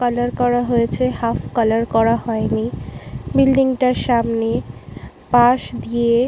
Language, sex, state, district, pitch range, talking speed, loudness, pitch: Bengali, female, West Bengal, Malda, 230-245 Hz, 125 wpm, -18 LUFS, 235 Hz